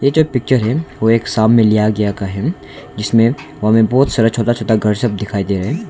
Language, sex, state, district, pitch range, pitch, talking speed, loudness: Hindi, male, Arunachal Pradesh, Longding, 105-125 Hz, 115 Hz, 245 wpm, -15 LUFS